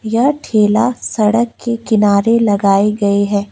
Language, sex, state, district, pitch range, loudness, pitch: Hindi, female, West Bengal, Alipurduar, 205-230 Hz, -14 LUFS, 215 Hz